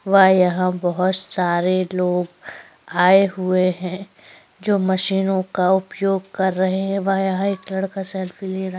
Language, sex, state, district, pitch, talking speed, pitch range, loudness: Hindi, female, Maharashtra, Chandrapur, 190 Hz, 150 wpm, 185-195 Hz, -19 LUFS